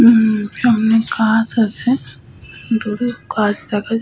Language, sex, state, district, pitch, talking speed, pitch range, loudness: Bengali, female, Jharkhand, Sahebganj, 225 Hz, 135 wpm, 215-235 Hz, -16 LUFS